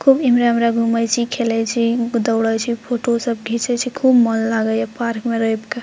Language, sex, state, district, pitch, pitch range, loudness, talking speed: Maithili, female, Bihar, Purnia, 235 Hz, 225-240 Hz, -18 LUFS, 205 wpm